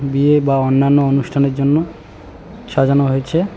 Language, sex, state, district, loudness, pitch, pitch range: Bengali, male, West Bengal, Cooch Behar, -15 LUFS, 140 Hz, 135-150 Hz